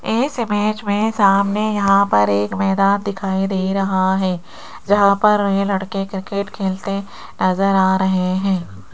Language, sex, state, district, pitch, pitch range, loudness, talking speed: Hindi, female, Rajasthan, Jaipur, 195 Hz, 190-200 Hz, -18 LUFS, 145 wpm